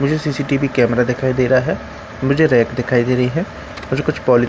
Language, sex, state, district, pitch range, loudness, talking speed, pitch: Hindi, male, Bihar, Katihar, 120-140 Hz, -17 LUFS, 215 wpm, 125 Hz